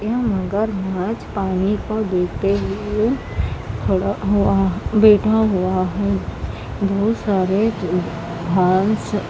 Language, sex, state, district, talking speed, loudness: Hindi, female, Andhra Pradesh, Anantapur, 75 wpm, -19 LUFS